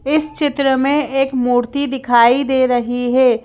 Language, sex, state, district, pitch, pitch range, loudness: Hindi, female, Madhya Pradesh, Bhopal, 265 Hz, 245-280 Hz, -15 LUFS